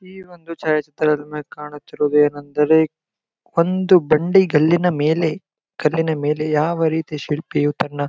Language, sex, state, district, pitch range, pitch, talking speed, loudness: Kannada, male, Karnataka, Gulbarga, 150-170 Hz, 155 Hz, 125 wpm, -18 LUFS